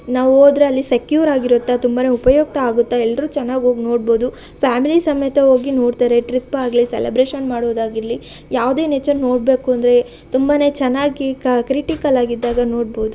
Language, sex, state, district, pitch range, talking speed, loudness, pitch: Kannada, female, Karnataka, Shimoga, 245-275 Hz, 135 wpm, -16 LUFS, 255 Hz